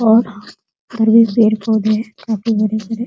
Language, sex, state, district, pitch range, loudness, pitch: Hindi, female, Bihar, Muzaffarpur, 215-230 Hz, -15 LUFS, 220 Hz